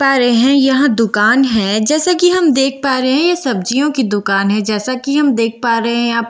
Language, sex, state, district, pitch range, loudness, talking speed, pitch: Hindi, female, Bihar, Katihar, 230-275 Hz, -13 LUFS, 265 wpm, 255 Hz